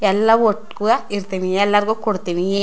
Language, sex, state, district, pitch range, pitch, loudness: Kannada, female, Karnataka, Chamarajanagar, 195-215 Hz, 205 Hz, -18 LUFS